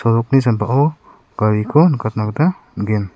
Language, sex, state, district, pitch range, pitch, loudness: Garo, male, Meghalaya, South Garo Hills, 110-145 Hz, 115 Hz, -16 LUFS